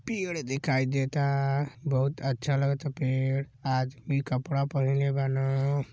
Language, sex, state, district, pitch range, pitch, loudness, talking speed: Bhojpuri, male, Uttar Pradesh, Gorakhpur, 135-140 Hz, 135 Hz, -29 LUFS, 110 wpm